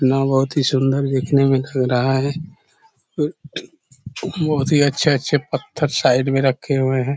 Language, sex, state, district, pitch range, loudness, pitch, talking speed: Hindi, male, Chhattisgarh, Korba, 135-150 Hz, -18 LUFS, 135 Hz, 140 wpm